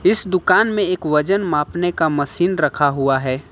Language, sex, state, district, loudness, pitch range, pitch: Hindi, male, Jharkhand, Ranchi, -18 LUFS, 145-185 Hz, 160 Hz